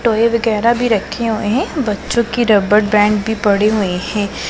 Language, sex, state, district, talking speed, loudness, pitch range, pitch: Hindi, female, Punjab, Pathankot, 185 wpm, -15 LUFS, 210-230 Hz, 215 Hz